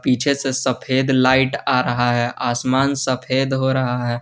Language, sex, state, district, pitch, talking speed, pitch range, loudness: Hindi, male, Jharkhand, Garhwa, 130 Hz, 170 wpm, 125-135 Hz, -19 LUFS